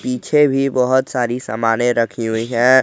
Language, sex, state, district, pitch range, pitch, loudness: Hindi, male, Jharkhand, Garhwa, 115-130 Hz, 125 Hz, -17 LUFS